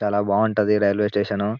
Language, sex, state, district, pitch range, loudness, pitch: Telugu, male, Telangana, Nalgonda, 100-105 Hz, -20 LUFS, 105 Hz